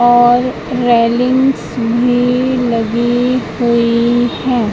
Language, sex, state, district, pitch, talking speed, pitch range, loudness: Hindi, female, Madhya Pradesh, Katni, 240 Hz, 75 wpm, 235-250 Hz, -13 LUFS